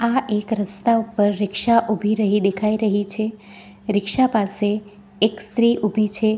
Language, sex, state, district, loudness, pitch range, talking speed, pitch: Gujarati, female, Gujarat, Valsad, -20 LUFS, 205-220 Hz, 150 wpm, 210 Hz